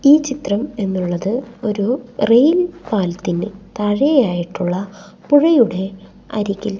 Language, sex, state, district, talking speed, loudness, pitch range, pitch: Malayalam, female, Kerala, Kasaragod, 90 wpm, -17 LUFS, 195-255 Hz, 210 Hz